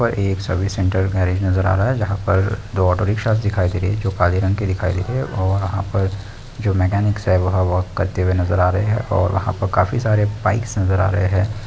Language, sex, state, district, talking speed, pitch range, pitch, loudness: Hindi, male, Bihar, Jahanabad, 260 wpm, 95-105 Hz, 95 Hz, -19 LUFS